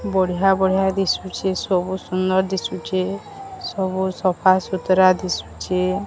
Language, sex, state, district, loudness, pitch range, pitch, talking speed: Odia, female, Odisha, Sambalpur, -20 LUFS, 185-190 Hz, 190 Hz, 100 wpm